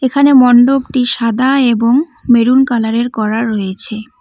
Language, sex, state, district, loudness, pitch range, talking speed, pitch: Bengali, female, West Bengal, Cooch Behar, -11 LUFS, 230-260 Hz, 130 wpm, 245 Hz